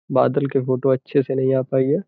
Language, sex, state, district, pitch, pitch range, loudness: Hindi, male, Uttar Pradesh, Gorakhpur, 135 Hz, 130-140 Hz, -20 LUFS